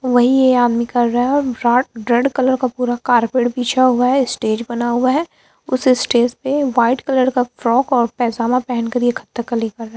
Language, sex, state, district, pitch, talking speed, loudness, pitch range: Hindi, female, Bihar, Lakhisarai, 245 Hz, 200 wpm, -16 LUFS, 235-255 Hz